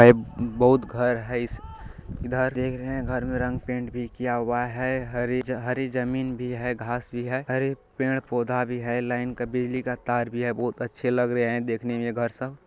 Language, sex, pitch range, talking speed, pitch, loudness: Maithili, male, 120-125 Hz, 215 wpm, 125 Hz, -27 LUFS